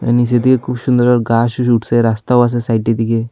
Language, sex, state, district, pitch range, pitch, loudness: Bengali, female, Tripura, Unakoti, 115-125 Hz, 120 Hz, -14 LUFS